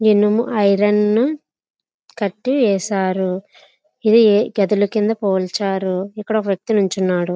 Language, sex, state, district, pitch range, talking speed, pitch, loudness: Telugu, female, Andhra Pradesh, Visakhapatnam, 195-220 Hz, 90 wpm, 205 Hz, -17 LUFS